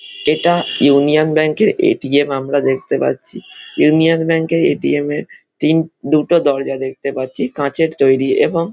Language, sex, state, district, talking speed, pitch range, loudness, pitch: Bengali, male, West Bengal, Malda, 145 wpm, 140-165 Hz, -15 LUFS, 150 Hz